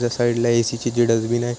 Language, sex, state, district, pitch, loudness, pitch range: Marathi, male, Maharashtra, Chandrapur, 120 Hz, -20 LUFS, 115-120 Hz